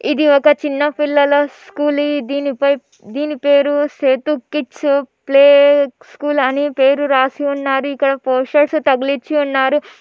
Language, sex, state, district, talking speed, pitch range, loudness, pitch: Telugu, female, Andhra Pradesh, Anantapur, 115 wpm, 275-295 Hz, -15 LUFS, 285 Hz